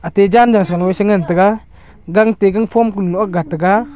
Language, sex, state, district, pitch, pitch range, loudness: Wancho, male, Arunachal Pradesh, Longding, 200 Hz, 185-220 Hz, -13 LUFS